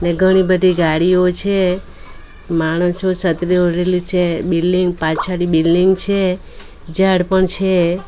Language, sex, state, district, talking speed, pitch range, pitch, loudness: Gujarati, female, Gujarat, Valsad, 110 wpm, 175-185 Hz, 180 Hz, -15 LUFS